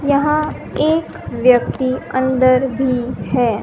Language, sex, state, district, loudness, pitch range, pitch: Hindi, female, Haryana, Jhajjar, -16 LUFS, 250-280 Hz, 260 Hz